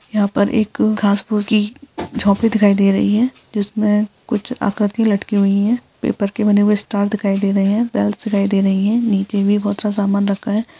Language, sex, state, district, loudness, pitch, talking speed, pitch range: Hindi, female, West Bengal, Purulia, -17 LUFS, 205 Hz, 205 wpm, 200-215 Hz